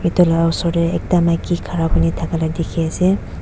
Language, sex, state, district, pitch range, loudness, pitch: Nagamese, female, Nagaland, Dimapur, 165-175 Hz, -18 LUFS, 165 Hz